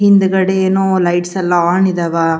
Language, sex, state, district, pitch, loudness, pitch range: Kannada, female, Karnataka, Gulbarga, 185 Hz, -13 LUFS, 175-190 Hz